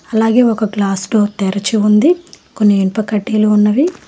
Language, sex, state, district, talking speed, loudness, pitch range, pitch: Telugu, female, Telangana, Hyderabad, 145 wpm, -13 LUFS, 205-225 Hz, 215 Hz